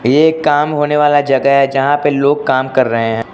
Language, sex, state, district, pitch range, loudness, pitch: Hindi, male, Arunachal Pradesh, Lower Dibang Valley, 130-145 Hz, -12 LUFS, 140 Hz